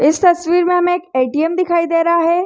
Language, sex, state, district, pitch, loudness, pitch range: Hindi, female, Chhattisgarh, Rajnandgaon, 340 Hz, -15 LUFS, 330-355 Hz